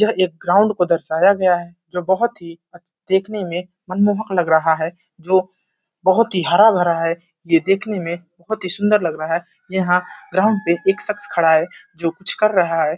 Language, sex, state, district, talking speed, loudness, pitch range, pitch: Hindi, male, Uttar Pradesh, Ghazipur, 195 wpm, -18 LUFS, 170-195 Hz, 180 Hz